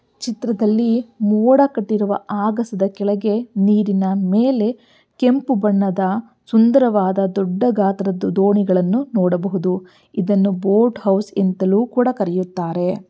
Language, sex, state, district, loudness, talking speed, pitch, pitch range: Kannada, female, Karnataka, Belgaum, -18 LUFS, 85 wpm, 205 Hz, 195-230 Hz